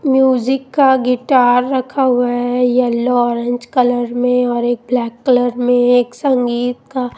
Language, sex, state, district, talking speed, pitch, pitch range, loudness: Hindi, female, Chandigarh, Chandigarh, 160 wpm, 245 Hz, 245-255 Hz, -15 LUFS